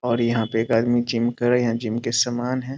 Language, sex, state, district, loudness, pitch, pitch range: Hindi, male, Bihar, Sitamarhi, -22 LUFS, 120 Hz, 115-120 Hz